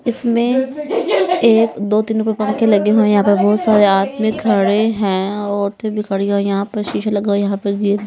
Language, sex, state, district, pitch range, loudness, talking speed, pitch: Hindi, female, Bihar, Patna, 200-225 Hz, -16 LUFS, 210 wpm, 210 Hz